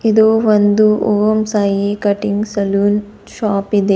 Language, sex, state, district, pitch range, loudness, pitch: Kannada, female, Karnataka, Bidar, 200-215 Hz, -14 LUFS, 210 Hz